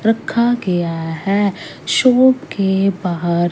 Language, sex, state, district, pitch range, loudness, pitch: Hindi, female, Punjab, Pathankot, 175-235 Hz, -16 LUFS, 195 Hz